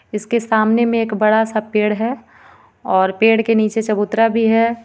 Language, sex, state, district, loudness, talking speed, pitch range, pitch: Hindi, female, Jharkhand, Ranchi, -16 LUFS, 185 wpm, 215-230 Hz, 225 Hz